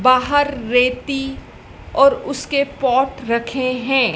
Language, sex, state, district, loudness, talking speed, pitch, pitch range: Hindi, female, Madhya Pradesh, Dhar, -18 LUFS, 100 wpm, 260 Hz, 250-275 Hz